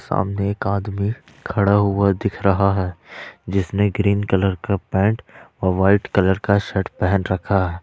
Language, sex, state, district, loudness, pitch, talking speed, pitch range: Hindi, male, Jharkhand, Ranchi, -20 LUFS, 100 Hz, 170 wpm, 95-100 Hz